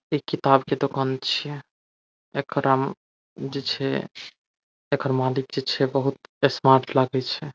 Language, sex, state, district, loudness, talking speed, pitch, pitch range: Maithili, male, Bihar, Saharsa, -24 LUFS, 135 wpm, 135 Hz, 130-140 Hz